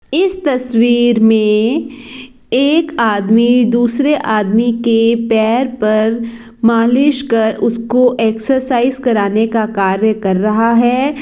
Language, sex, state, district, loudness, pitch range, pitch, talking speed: Hindi, female, Chhattisgarh, Bilaspur, -13 LUFS, 220-255 Hz, 235 Hz, 105 wpm